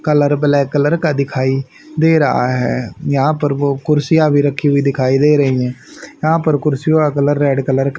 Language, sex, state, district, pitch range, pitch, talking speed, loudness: Hindi, male, Haryana, Rohtak, 135-150 Hz, 145 Hz, 205 wpm, -15 LUFS